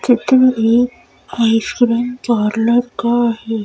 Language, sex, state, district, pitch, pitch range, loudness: Hindi, female, Madhya Pradesh, Bhopal, 240 Hz, 225-245 Hz, -15 LUFS